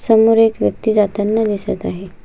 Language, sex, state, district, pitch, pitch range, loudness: Marathi, female, Maharashtra, Solapur, 215 Hz, 200-225 Hz, -16 LUFS